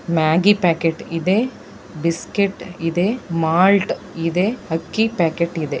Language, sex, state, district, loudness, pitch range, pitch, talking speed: Kannada, female, Karnataka, Dakshina Kannada, -19 LUFS, 165-200 Hz, 170 Hz, 105 wpm